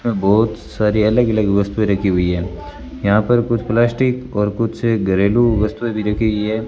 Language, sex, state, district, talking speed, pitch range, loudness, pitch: Hindi, male, Rajasthan, Bikaner, 180 wpm, 100-115 Hz, -17 LUFS, 110 Hz